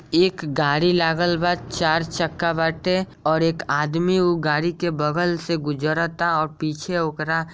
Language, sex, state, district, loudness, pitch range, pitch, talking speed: Bhojpuri, male, Bihar, Saran, -21 LUFS, 155-175 Hz, 165 Hz, 160 wpm